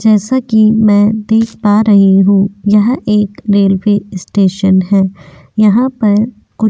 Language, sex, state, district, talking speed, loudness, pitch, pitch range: Hindi, female, Goa, North and South Goa, 145 wpm, -11 LUFS, 210 Hz, 195-220 Hz